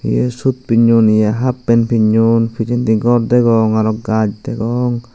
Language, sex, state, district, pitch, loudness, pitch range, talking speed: Chakma, male, Tripura, Unakoti, 115 Hz, -14 LUFS, 110-120 Hz, 140 wpm